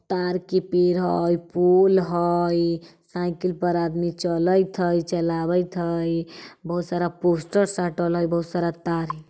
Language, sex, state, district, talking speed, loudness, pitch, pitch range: Bajjika, female, Bihar, Vaishali, 140 wpm, -23 LUFS, 175 Hz, 170-180 Hz